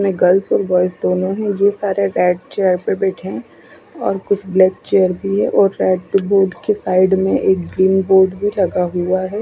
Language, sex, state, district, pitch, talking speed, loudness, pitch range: Hindi, female, Odisha, Khordha, 190 Hz, 195 wpm, -16 LUFS, 185-195 Hz